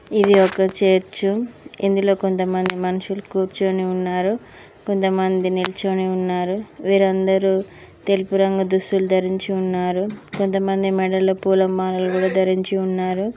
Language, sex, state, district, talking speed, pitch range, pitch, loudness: Telugu, female, Telangana, Mahabubabad, 110 wpm, 185-195 Hz, 190 Hz, -20 LUFS